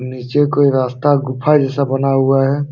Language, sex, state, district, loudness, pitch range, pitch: Hindi, male, Uttar Pradesh, Jalaun, -15 LUFS, 130-145 Hz, 135 Hz